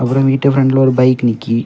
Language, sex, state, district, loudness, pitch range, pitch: Tamil, male, Tamil Nadu, Kanyakumari, -12 LUFS, 120-135 Hz, 130 Hz